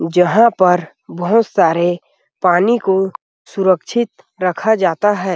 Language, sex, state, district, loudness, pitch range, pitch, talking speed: Hindi, male, Chhattisgarh, Sarguja, -15 LUFS, 175-220 Hz, 190 Hz, 110 wpm